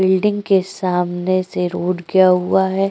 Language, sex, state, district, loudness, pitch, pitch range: Hindi, female, Uttar Pradesh, Jyotiba Phule Nagar, -17 LUFS, 185 Hz, 180-190 Hz